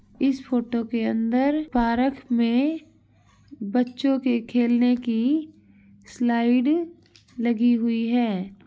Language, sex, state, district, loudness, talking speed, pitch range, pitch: Hindi, female, Uttar Pradesh, Varanasi, -23 LUFS, 95 wpm, 235-265 Hz, 240 Hz